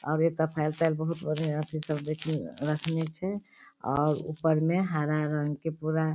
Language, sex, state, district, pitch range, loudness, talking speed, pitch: Maithili, female, Bihar, Darbhanga, 150-160 Hz, -30 LUFS, 185 wpm, 155 Hz